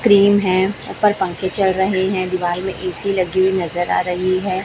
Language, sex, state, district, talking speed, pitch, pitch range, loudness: Hindi, female, Chhattisgarh, Raipur, 205 wpm, 190 Hz, 185-195 Hz, -18 LUFS